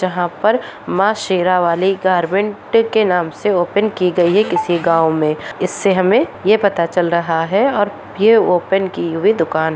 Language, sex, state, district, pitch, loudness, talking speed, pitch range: Hindi, female, Bihar, Purnia, 185 Hz, -15 LUFS, 170 wpm, 170-205 Hz